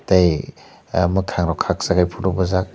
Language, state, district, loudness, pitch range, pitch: Kokborok, Tripura, Dhalai, -19 LUFS, 90-95 Hz, 95 Hz